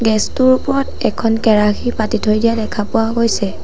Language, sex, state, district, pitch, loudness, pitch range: Assamese, female, Assam, Sonitpur, 225 Hz, -15 LUFS, 215-235 Hz